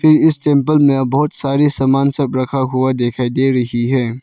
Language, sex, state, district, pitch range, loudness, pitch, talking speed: Hindi, male, Arunachal Pradesh, Lower Dibang Valley, 130-145 Hz, -14 LUFS, 135 Hz, 200 wpm